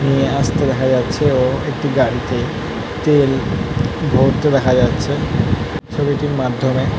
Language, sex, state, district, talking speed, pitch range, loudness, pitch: Bengali, male, West Bengal, North 24 Parganas, 120 wpm, 125-140 Hz, -17 LUFS, 130 Hz